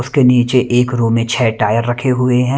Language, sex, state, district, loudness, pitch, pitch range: Hindi, male, Punjab, Kapurthala, -14 LUFS, 125 Hz, 115-125 Hz